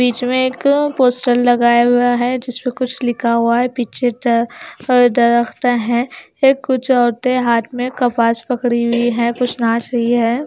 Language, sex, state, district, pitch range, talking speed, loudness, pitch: Hindi, female, Himachal Pradesh, Shimla, 235-250 Hz, 160 wpm, -15 LUFS, 245 Hz